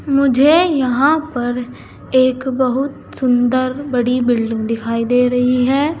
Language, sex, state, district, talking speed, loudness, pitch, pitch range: Hindi, female, Uttar Pradesh, Saharanpur, 120 wpm, -16 LUFS, 255 Hz, 245-275 Hz